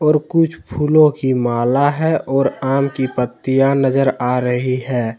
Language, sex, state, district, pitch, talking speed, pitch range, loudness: Hindi, male, Jharkhand, Deoghar, 135 Hz, 150 wpm, 125-145 Hz, -16 LUFS